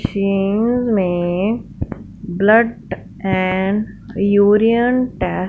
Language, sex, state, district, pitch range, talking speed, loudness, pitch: Hindi, female, Punjab, Fazilka, 190-225 Hz, 75 wpm, -16 LUFS, 200 Hz